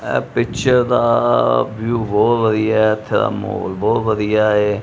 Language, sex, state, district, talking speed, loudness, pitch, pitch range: Punjabi, male, Punjab, Kapurthala, 125 wpm, -16 LUFS, 110 Hz, 105-115 Hz